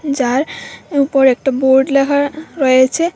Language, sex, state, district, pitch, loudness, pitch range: Bengali, female, Tripura, West Tripura, 275 Hz, -14 LUFS, 265-285 Hz